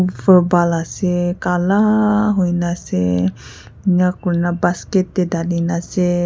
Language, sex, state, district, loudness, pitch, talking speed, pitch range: Nagamese, female, Nagaland, Kohima, -17 LUFS, 175 Hz, 115 wpm, 170-185 Hz